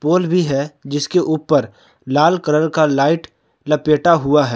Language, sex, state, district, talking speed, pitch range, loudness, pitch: Hindi, male, Jharkhand, Palamu, 160 wpm, 145-165 Hz, -16 LUFS, 150 Hz